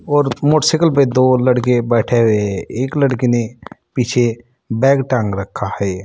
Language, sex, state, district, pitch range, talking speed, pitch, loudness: Hindi, male, Uttar Pradesh, Saharanpur, 115-135 Hz, 160 wpm, 125 Hz, -16 LUFS